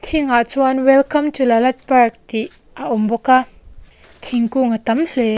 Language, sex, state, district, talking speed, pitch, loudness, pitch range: Mizo, female, Mizoram, Aizawl, 180 wpm, 255 Hz, -16 LUFS, 230-270 Hz